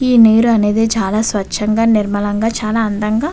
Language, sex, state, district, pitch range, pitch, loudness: Telugu, female, Andhra Pradesh, Visakhapatnam, 210-225 Hz, 220 Hz, -14 LUFS